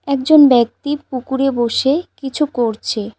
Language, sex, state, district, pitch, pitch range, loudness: Bengali, female, West Bengal, Cooch Behar, 270 Hz, 240-285 Hz, -16 LUFS